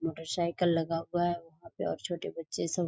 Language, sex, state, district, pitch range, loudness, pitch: Hindi, female, Bihar, East Champaran, 165-175 Hz, -33 LUFS, 170 Hz